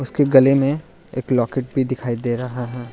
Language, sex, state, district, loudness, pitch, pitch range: Hindi, male, Arunachal Pradesh, Lower Dibang Valley, -19 LUFS, 130 Hz, 125-135 Hz